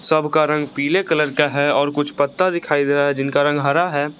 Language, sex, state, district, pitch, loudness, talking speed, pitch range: Hindi, male, Jharkhand, Garhwa, 145 Hz, -18 LUFS, 255 wpm, 145-155 Hz